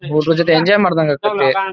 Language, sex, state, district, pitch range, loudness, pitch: Kannada, male, Karnataka, Dharwad, 155-195 Hz, -14 LUFS, 165 Hz